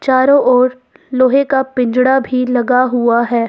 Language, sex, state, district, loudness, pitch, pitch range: Hindi, female, Jharkhand, Ranchi, -13 LUFS, 255 Hz, 250-265 Hz